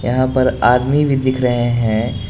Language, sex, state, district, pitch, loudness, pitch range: Hindi, male, Jharkhand, Garhwa, 125 Hz, -16 LUFS, 120-130 Hz